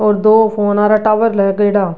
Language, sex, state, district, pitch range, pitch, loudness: Rajasthani, female, Rajasthan, Nagaur, 205-215 Hz, 210 Hz, -12 LUFS